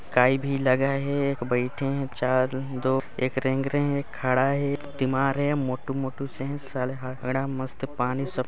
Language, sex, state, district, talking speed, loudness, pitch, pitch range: Hindi, male, Chhattisgarh, Sarguja, 125 wpm, -26 LUFS, 135 Hz, 130-140 Hz